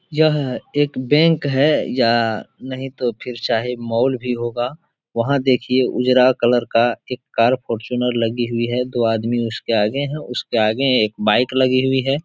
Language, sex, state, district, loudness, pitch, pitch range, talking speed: Hindi, male, Bihar, Supaul, -19 LUFS, 125 Hz, 115-130 Hz, 170 wpm